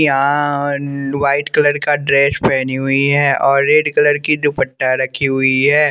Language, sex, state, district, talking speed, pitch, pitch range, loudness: Hindi, male, Bihar, West Champaran, 160 wpm, 140 Hz, 135-145 Hz, -14 LUFS